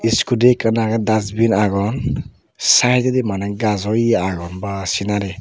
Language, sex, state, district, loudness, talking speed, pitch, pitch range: Chakma, male, Tripura, Dhalai, -17 LUFS, 145 wpm, 110 Hz, 100-115 Hz